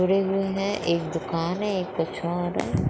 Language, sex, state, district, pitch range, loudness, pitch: Hindi, female, Bihar, Muzaffarpur, 170-195 Hz, -26 LUFS, 175 Hz